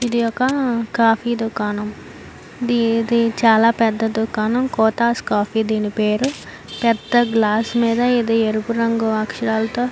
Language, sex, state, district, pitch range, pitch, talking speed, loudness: Telugu, female, Andhra Pradesh, Anantapur, 220-235 Hz, 230 Hz, 115 wpm, -18 LUFS